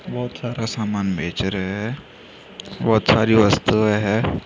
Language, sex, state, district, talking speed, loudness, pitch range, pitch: Hindi, male, Maharashtra, Mumbai Suburban, 150 wpm, -20 LUFS, 95-110 Hz, 110 Hz